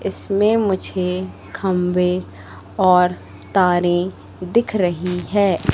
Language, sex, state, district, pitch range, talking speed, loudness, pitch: Hindi, female, Madhya Pradesh, Katni, 180-195 Hz, 85 wpm, -19 LUFS, 180 Hz